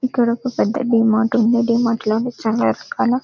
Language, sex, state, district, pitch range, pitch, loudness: Telugu, female, Telangana, Karimnagar, 220-245 Hz, 235 Hz, -18 LUFS